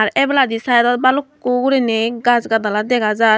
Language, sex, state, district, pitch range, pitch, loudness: Chakma, female, Tripura, Unakoti, 225-260 Hz, 240 Hz, -16 LUFS